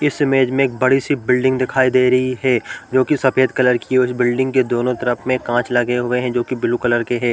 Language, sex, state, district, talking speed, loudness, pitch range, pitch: Hindi, male, Chhattisgarh, Balrampur, 255 wpm, -17 LUFS, 120-130 Hz, 130 Hz